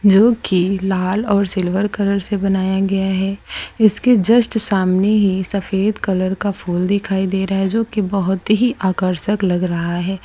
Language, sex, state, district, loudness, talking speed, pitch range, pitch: Hindi, female, Gujarat, Valsad, -17 LUFS, 175 wpm, 190-205 Hz, 195 Hz